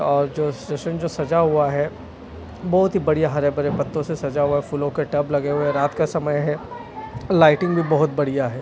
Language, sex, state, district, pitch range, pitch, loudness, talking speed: Hindi, male, Delhi, New Delhi, 145-160 Hz, 150 Hz, -21 LUFS, 225 wpm